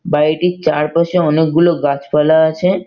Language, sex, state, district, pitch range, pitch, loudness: Bengali, male, West Bengal, North 24 Parganas, 150-175 Hz, 160 Hz, -14 LUFS